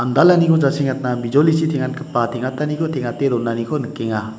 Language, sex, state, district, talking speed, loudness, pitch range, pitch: Garo, male, Meghalaya, West Garo Hills, 95 wpm, -18 LUFS, 120-150 Hz, 135 Hz